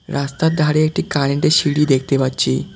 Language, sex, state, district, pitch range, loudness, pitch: Bengali, male, West Bengal, Cooch Behar, 135-150 Hz, -17 LUFS, 140 Hz